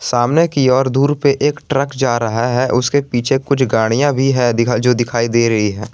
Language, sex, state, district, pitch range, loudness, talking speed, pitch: Hindi, male, Jharkhand, Garhwa, 120-140 Hz, -15 LUFS, 210 wpm, 130 Hz